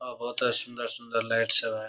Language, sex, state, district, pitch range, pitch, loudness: Hindi, male, Bihar, Saharsa, 115-120 Hz, 120 Hz, -26 LUFS